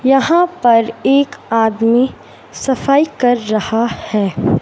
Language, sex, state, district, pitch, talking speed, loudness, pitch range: Hindi, male, Madhya Pradesh, Katni, 245 Hz, 105 wpm, -14 LUFS, 225-275 Hz